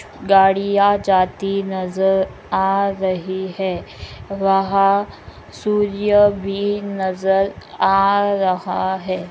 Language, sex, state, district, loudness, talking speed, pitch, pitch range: Magahi, female, Bihar, Gaya, -18 LUFS, 85 wpm, 195 Hz, 190-200 Hz